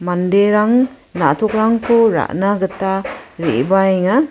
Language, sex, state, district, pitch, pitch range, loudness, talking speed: Garo, female, Meghalaya, West Garo Hills, 195 Hz, 185-225 Hz, -15 LUFS, 70 wpm